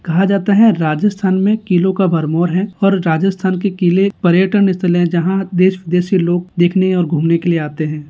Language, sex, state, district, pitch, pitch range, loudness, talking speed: Hindi, male, Rajasthan, Nagaur, 185 Hz, 175-195 Hz, -14 LUFS, 205 wpm